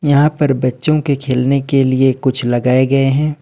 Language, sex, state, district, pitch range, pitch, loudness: Hindi, male, Jharkhand, Ranchi, 130-145 Hz, 135 Hz, -14 LUFS